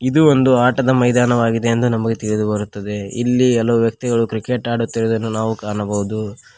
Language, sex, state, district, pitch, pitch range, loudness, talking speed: Kannada, male, Karnataka, Koppal, 115 Hz, 110-125 Hz, -17 LUFS, 135 wpm